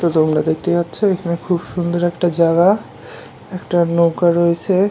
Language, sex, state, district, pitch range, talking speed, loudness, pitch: Bengali, male, West Bengal, North 24 Parganas, 170-180 Hz, 145 wpm, -16 LUFS, 175 Hz